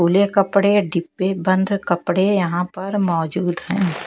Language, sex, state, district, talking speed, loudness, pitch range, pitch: Hindi, female, Haryana, Jhajjar, 150 wpm, -19 LUFS, 175-200 Hz, 185 Hz